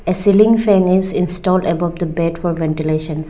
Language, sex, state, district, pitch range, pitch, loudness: English, female, Arunachal Pradesh, Lower Dibang Valley, 165-190 Hz, 175 Hz, -16 LUFS